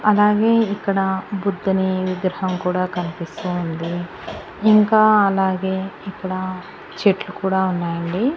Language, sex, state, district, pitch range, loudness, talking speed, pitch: Telugu, female, Andhra Pradesh, Annamaya, 180-205 Hz, -20 LUFS, 95 wpm, 190 Hz